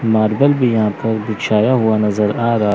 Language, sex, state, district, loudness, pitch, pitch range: Hindi, male, Chandigarh, Chandigarh, -15 LUFS, 110 Hz, 105-115 Hz